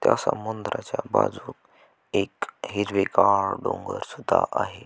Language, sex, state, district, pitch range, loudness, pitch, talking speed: Marathi, male, Maharashtra, Sindhudurg, 100-105 Hz, -25 LUFS, 100 Hz, 125 wpm